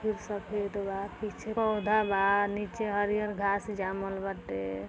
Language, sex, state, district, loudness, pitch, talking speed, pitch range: Hindi, female, Uttar Pradesh, Deoria, -31 LUFS, 205 Hz, 135 wpm, 195-210 Hz